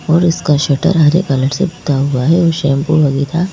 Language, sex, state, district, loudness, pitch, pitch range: Hindi, female, Madhya Pradesh, Bhopal, -13 LUFS, 155 Hz, 140-170 Hz